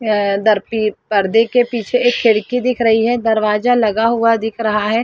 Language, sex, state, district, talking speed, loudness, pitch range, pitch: Hindi, female, Chhattisgarh, Rajnandgaon, 180 wpm, -15 LUFS, 215-235 Hz, 225 Hz